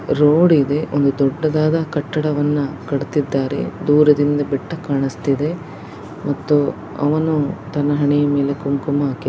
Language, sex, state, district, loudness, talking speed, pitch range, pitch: Kannada, female, Karnataka, Dakshina Kannada, -18 LUFS, 105 wpm, 140-150 Hz, 145 Hz